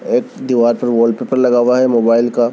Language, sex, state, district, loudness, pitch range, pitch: Hindi, male, Rajasthan, Churu, -14 LUFS, 115-125 Hz, 120 Hz